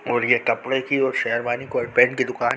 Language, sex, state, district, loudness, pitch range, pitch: Hindi, female, Bihar, Darbhanga, -21 LUFS, 120-130 Hz, 125 Hz